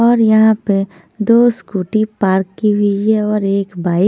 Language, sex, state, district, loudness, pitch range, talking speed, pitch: Hindi, female, Punjab, Kapurthala, -14 LUFS, 195-220 Hz, 175 wpm, 210 Hz